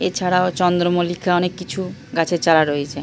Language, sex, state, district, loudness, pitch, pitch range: Bengali, female, West Bengal, Purulia, -19 LUFS, 175 Hz, 165-180 Hz